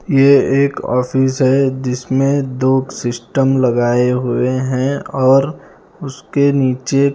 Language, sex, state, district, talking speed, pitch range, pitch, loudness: Hindi, male, Bihar, Kaimur, 110 wpm, 125-140 Hz, 130 Hz, -15 LUFS